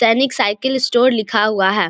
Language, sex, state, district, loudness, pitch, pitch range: Hindi, female, Bihar, Samastipur, -16 LUFS, 230 Hz, 210-260 Hz